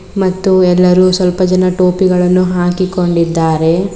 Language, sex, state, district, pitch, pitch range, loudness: Kannada, female, Karnataka, Bidar, 180 Hz, 180-185 Hz, -11 LUFS